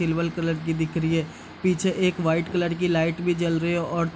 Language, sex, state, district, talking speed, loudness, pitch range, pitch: Hindi, male, Bihar, East Champaran, 260 wpm, -24 LUFS, 165-175 Hz, 170 Hz